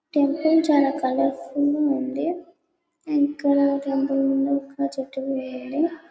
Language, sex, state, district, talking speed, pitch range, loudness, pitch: Telugu, female, Telangana, Karimnagar, 90 wpm, 275-310 Hz, -23 LUFS, 285 Hz